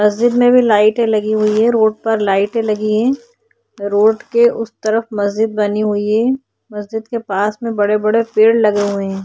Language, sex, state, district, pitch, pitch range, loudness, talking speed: Hindi, female, Maharashtra, Chandrapur, 215 Hz, 210-230 Hz, -15 LUFS, 195 wpm